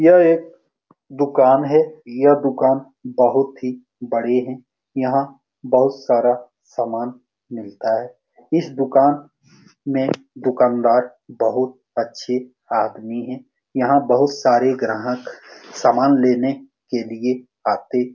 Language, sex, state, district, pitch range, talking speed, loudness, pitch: Hindi, male, Bihar, Saran, 125-135 Hz, 110 wpm, -19 LUFS, 130 Hz